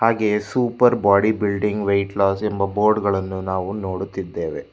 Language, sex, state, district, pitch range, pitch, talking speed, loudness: Kannada, male, Karnataka, Bangalore, 95-110 Hz, 100 Hz, 140 wpm, -20 LUFS